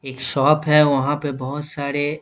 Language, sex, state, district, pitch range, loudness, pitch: Hindi, male, Bihar, Lakhisarai, 140-150 Hz, -19 LUFS, 145 Hz